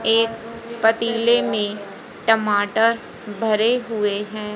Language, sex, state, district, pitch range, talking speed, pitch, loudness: Hindi, female, Haryana, Rohtak, 210-230 Hz, 90 wpm, 225 Hz, -20 LUFS